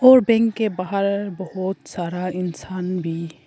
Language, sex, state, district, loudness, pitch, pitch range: Hindi, female, Arunachal Pradesh, Papum Pare, -22 LUFS, 185 Hz, 175-200 Hz